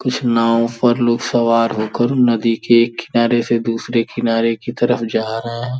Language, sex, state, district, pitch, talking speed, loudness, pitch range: Hindi, male, Uttar Pradesh, Gorakhpur, 115 Hz, 185 wpm, -16 LUFS, 115-120 Hz